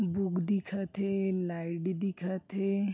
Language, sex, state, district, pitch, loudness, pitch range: Chhattisgarhi, male, Chhattisgarh, Bilaspur, 195 Hz, -33 LUFS, 180-195 Hz